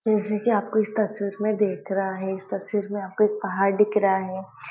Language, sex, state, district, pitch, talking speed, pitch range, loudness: Hindi, female, Maharashtra, Nagpur, 205 Hz, 230 wpm, 195-215 Hz, -24 LUFS